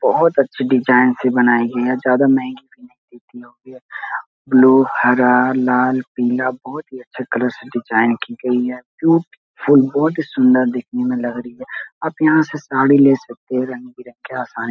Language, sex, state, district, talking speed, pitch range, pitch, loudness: Hindi, male, Bihar, Jahanabad, 170 wpm, 125-135 Hz, 125 Hz, -16 LUFS